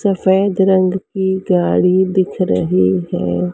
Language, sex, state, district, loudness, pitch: Hindi, female, Maharashtra, Mumbai Suburban, -15 LUFS, 185 Hz